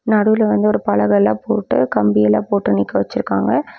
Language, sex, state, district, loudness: Tamil, female, Tamil Nadu, Namakkal, -16 LUFS